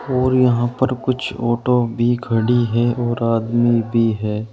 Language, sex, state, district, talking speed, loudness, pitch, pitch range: Hindi, male, Uttar Pradesh, Saharanpur, 160 wpm, -18 LUFS, 120 Hz, 115-125 Hz